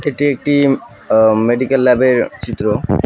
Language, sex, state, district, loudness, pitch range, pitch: Bengali, male, West Bengal, Alipurduar, -14 LUFS, 110-140 Hz, 125 Hz